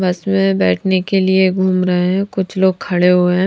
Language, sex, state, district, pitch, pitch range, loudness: Hindi, female, Punjab, Fazilka, 185 Hz, 180-190 Hz, -15 LUFS